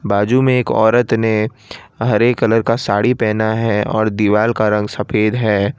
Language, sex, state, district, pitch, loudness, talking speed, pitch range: Hindi, male, Gujarat, Valsad, 110 Hz, -15 LUFS, 175 wpm, 105-120 Hz